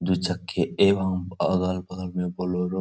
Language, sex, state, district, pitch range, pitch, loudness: Hindi, male, Bihar, Supaul, 90-95 Hz, 90 Hz, -25 LUFS